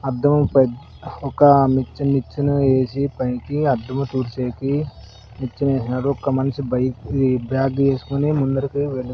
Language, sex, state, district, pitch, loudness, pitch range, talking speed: Telugu, male, Andhra Pradesh, Sri Satya Sai, 135 Hz, -20 LUFS, 130-140 Hz, 120 wpm